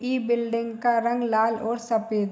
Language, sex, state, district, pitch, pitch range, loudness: Hindi, female, Bihar, Saharsa, 230 Hz, 225-240 Hz, -25 LUFS